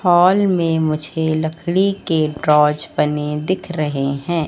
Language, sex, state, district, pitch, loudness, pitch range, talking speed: Hindi, female, Madhya Pradesh, Katni, 160 Hz, -17 LUFS, 150-175 Hz, 135 wpm